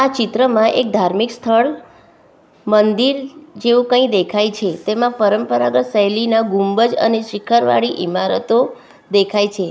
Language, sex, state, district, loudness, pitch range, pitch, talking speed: Gujarati, female, Gujarat, Valsad, -16 LUFS, 200-235 Hz, 215 Hz, 115 wpm